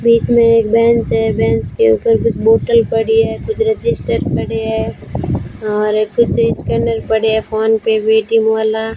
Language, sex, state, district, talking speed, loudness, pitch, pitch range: Hindi, female, Rajasthan, Bikaner, 165 wpm, -14 LUFS, 220 Hz, 215-230 Hz